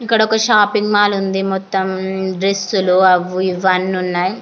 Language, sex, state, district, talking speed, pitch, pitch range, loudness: Telugu, female, Andhra Pradesh, Anantapur, 165 wpm, 190 Hz, 185-205 Hz, -15 LUFS